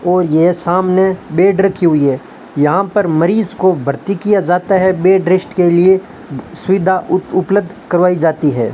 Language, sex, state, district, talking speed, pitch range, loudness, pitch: Hindi, male, Rajasthan, Bikaner, 165 wpm, 170-190 Hz, -13 LUFS, 180 Hz